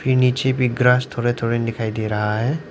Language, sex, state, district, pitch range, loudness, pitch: Hindi, male, Arunachal Pradesh, Lower Dibang Valley, 115-130 Hz, -20 LUFS, 120 Hz